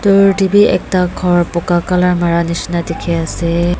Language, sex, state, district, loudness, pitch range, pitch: Nagamese, female, Nagaland, Dimapur, -14 LUFS, 170-185 Hz, 175 Hz